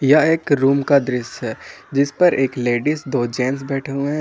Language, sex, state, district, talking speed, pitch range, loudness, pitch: Hindi, male, Jharkhand, Ranchi, 215 wpm, 130-145 Hz, -19 LUFS, 140 Hz